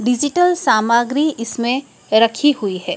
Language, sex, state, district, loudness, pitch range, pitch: Hindi, female, Madhya Pradesh, Dhar, -16 LUFS, 225-290 Hz, 245 Hz